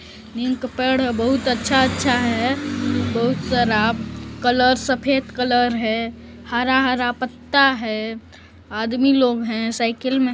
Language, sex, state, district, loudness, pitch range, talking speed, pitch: Hindi, female, Chhattisgarh, Balrampur, -20 LUFS, 235-260 Hz, 120 wpm, 250 Hz